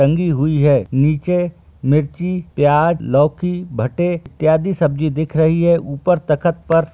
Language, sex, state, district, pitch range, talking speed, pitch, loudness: Hindi, male, Chhattisgarh, Bilaspur, 145-175 Hz, 140 wpm, 160 Hz, -17 LUFS